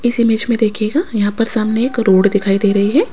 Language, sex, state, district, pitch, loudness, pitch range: Hindi, female, Rajasthan, Jaipur, 220 Hz, -15 LUFS, 205-235 Hz